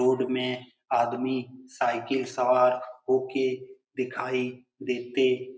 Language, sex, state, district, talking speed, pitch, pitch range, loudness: Hindi, male, Bihar, Lakhisarai, 85 wpm, 125 Hz, 125-130 Hz, -27 LUFS